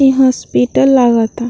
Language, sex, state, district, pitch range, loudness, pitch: Bhojpuri, female, Uttar Pradesh, Ghazipur, 225-265 Hz, -12 LUFS, 245 Hz